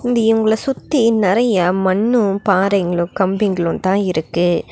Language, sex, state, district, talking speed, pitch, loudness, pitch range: Tamil, female, Tamil Nadu, Nilgiris, 115 wpm, 195 Hz, -16 LUFS, 185-225 Hz